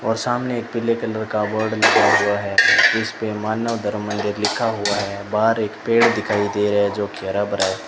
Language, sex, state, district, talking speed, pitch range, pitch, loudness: Hindi, male, Rajasthan, Bikaner, 205 wpm, 100-115 Hz, 105 Hz, -19 LUFS